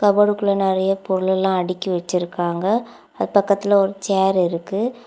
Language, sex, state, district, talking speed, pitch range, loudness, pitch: Tamil, female, Tamil Nadu, Kanyakumari, 120 wpm, 185-200 Hz, -19 LUFS, 195 Hz